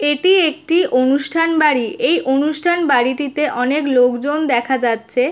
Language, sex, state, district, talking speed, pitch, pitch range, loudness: Bengali, female, West Bengal, Jhargram, 125 wpm, 280 Hz, 250-310 Hz, -16 LUFS